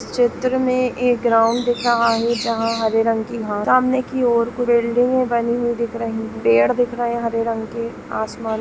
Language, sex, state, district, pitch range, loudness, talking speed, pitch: Hindi, female, Jharkhand, Jamtara, 225-245 Hz, -19 LUFS, 195 wpm, 235 Hz